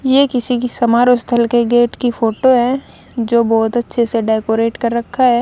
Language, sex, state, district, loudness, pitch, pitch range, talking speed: Hindi, female, Maharashtra, Gondia, -15 LUFS, 240 Hz, 230-245 Hz, 200 wpm